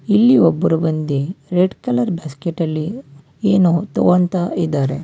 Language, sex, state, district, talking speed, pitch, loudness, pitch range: Kannada, male, Karnataka, Bangalore, 120 wpm, 170 Hz, -17 LUFS, 155-190 Hz